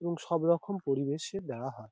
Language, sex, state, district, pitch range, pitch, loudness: Bengali, male, West Bengal, Dakshin Dinajpur, 135-170 Hz, 160 Hz, -32 LUFS